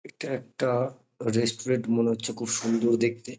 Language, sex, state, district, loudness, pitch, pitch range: Bengali, male, West Bengal, North 24 Parganas, -27 LUFS, 115 Hz, 115-125 Hz